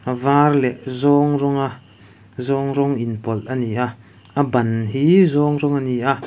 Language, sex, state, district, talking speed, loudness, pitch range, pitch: Mizo, male, Mizoram, Aizawl, 180 wpm, -18 LUFS, 115-140 Hz, 130 Hz